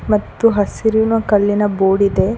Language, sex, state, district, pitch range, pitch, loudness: Kannada, female, Karnataka, Koppal, 200-220 Hz, 210 Hz, -15 LUFS